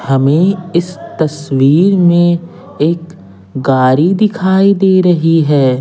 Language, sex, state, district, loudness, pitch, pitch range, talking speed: Hindi, male, Bihar, Patna, -11 LUFS, 170 Hz, 135-180 Hz, 105 wpm